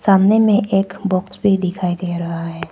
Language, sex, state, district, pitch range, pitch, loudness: Hindi, female, Arunachal Pradesh, Papum Pare, 180-200 Hz, 190 Hz, -17 LUFS